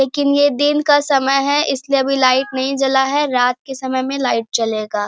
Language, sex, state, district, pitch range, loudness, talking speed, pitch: Hindi, female, Bihar, Bhagalpur, 255-280 Hz, -16 LUFS, 210 wpm, 270 Hz